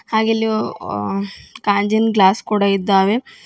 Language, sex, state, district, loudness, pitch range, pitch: Kannada, female, Karnataka, Bidar, -17 LUFS, 195-225 Hz, 210 Hz